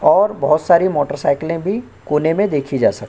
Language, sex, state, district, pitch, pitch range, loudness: Hindi, male, Uttar Pradesh, Jyotiba Phule Nagar, 165 Hz, 145-200 Hz, -17 LUFS